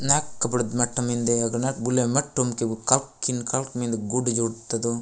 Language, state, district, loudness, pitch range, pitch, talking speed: Gondi, Chhattisgarh, Sukma, -23 LUFS, 115-130 Hz, 120 Hz, 205 wpm